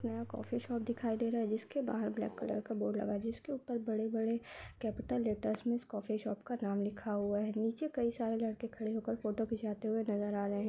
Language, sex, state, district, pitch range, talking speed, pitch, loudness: Hindi, male, Uttar Pradesh, Hamirpur, 215-235 Hz, 225 wpm, 225 Hz, -38 LUFS